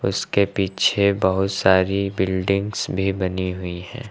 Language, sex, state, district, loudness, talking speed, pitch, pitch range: Hindi, male, Uttar Pradesh, Lucknow, -21 LUFS, 130 wpm, 95 Hz, 95-100 Hz